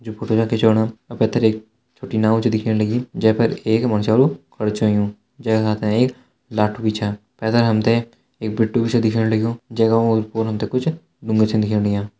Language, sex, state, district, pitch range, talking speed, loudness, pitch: Hindi, male, Uttarakhand, Uttarkashi, 110-115 Hz, 195 wpm, -19 LUFS, 110 Hz